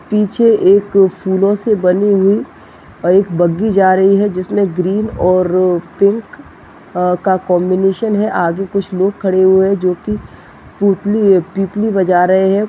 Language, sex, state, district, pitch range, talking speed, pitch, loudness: Hindi, female, Chhattisgarh, Jashpur, 185-205 Hz, 145 wpm, 195 Hz, -13 LUFS